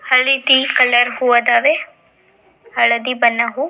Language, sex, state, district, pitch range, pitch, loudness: Kannada, female, Karnataka, Belgaum, 240-270 Hz, 255 Hz, -14 LUFS